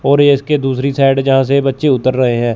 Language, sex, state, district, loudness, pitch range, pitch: Hindi, male, Chandigarh, Chandigarh, -13 LUFS, 130-140 Hz, 135 Hz